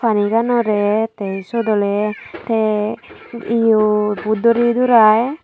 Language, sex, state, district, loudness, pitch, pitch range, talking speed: Chakma, female, Tripura, Unakoti, -16 LUFS, 220 Hz, 210-235 Hz, 100 wpm